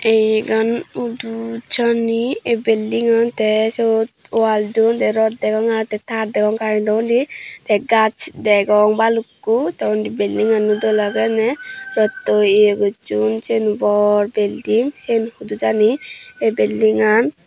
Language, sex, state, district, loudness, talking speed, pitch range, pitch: Chakma, female, Tripura, Dhalai, -17 LUFS, 135 wpm, 210-230 Hz, 220 Hz